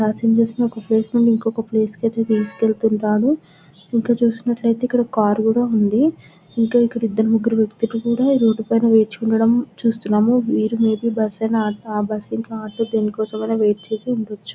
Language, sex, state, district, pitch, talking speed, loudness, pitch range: Telugu, female, Telangana, Nalgonda, 225 Hz, 135 wpm, -19 LUFS, 215-230 Hz